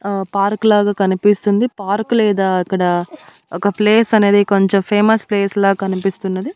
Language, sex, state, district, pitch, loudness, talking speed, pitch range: Telugu, female, Andhra Pradesh, Annamaya, 200 Hz, -15 LUFS, 135 wpm, 195-210 Hz